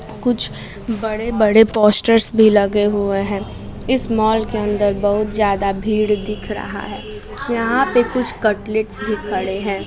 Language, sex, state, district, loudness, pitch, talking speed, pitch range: Hindi, female, Bihar, West Champaran, -17 LUFS, 215 Hz, 150 wpm, 205-225 Hz